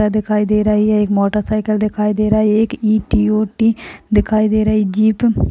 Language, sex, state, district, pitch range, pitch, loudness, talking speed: Hindi, female, Chhattisgarh, Balrampur, 210-215 Hz, 215 Hz, -15 LUFS, 230 wpm